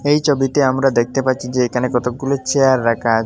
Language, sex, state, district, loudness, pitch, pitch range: Bengali, male, Assam, Hailakandi, -17 LUFS, 130 Hz, 125-135 Hz